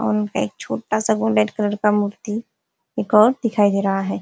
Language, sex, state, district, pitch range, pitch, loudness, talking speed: Hindi, female, Uttar Pradesh, Ghazipur, 205-220 Hz, 210 Hz, -20 LUFS, 215 wpm